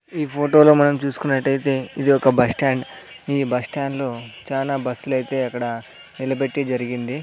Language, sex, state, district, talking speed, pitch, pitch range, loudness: Telugu, male, Andhra Pradesh, Sri Satya Sai, 135 wpm, 135 Hz, 125-140 Hz, -20 LUFS